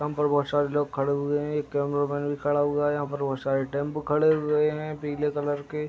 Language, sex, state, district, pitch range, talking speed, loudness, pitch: Hindi, male, Uttar Pradesh, Deoria, 145-150 Hz, 255 wpm, -26 LUFS, 145 Hz